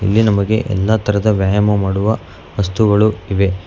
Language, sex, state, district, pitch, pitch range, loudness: Kannada, male, Karnataka, Bangalore, 105 Hz, 95-110 Hz, -15 LUFS